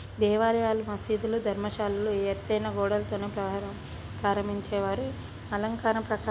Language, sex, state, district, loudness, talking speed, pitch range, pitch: Telugu, female, Telangana, Nalgonda, -29 LUFS, 75 wpm, 200-215 Hz, 210 Hz